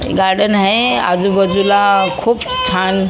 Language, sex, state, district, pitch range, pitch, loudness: Marathi, female, Maharashtra, Mumbai Suburban, 185-200 Hz, 195 Hz, -13 LUFS